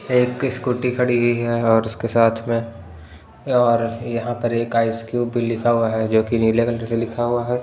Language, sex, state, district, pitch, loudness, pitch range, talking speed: Hindi, male, Punjab, Pathankot, 115 Hz, -20 LUFS, 115-120 Hz, 205 wpm